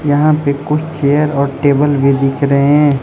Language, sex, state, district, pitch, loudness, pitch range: Hindi, male, Arunachal Pradesh, Lower Dibang Valley, 145 Hz, -13 LUFS, 140-150 Hz